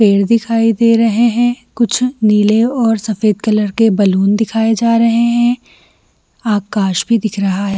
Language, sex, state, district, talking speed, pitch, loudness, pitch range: Hindi, female, Jharkhand, Jamtara, 160 wpm, 225 Hz, -13 LUFS, 210-230 Hz